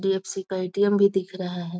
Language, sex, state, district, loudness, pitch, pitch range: Hindi, female, Bihar, Muzaffarpur, -25 LUFS, 190 Hz, 185-195 Hz